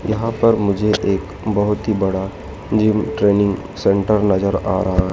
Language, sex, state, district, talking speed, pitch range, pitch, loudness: Hindi, male, Madhya Pradesh, Dhar, 150 wpm, 95-105 Hz, 100 Hz, -18 LUFS